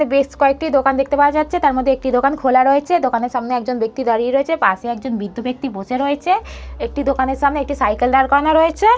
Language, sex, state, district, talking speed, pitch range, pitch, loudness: Bengali, female, West Bengal, North 24 Parganas, 215 wpm, 250-285 Hz, 270 Hz, -17 LUFS